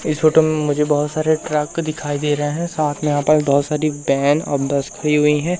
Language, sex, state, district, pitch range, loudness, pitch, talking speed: Hindi, male, Madhya Pradesh, Umaria, 145-155 Hz, -18 LUFS, 150 Hz, 245 wpm